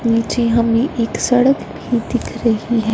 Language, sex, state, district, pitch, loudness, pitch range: Hindi, female, Punjab, Fazilka, 235 Hz, -17 LUFS, 230-245 Hz